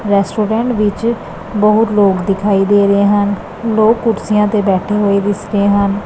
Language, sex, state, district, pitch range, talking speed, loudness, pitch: Punjabi, female, Punjab, Pathankot, 200-215 Hz, 160 wpm, -13 LUFS, 205 Hz